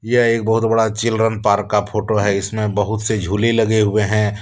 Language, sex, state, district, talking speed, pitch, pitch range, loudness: Hindi, male, Jharkhand, Deoghar, 215 wpm, 110 Hz, 105-115 Hz, -17 LUFS